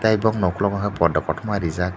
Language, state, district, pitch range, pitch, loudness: Kokborok, Tripura, Dhalai, 85-105 Hz, 100 Hz, -22 LUFS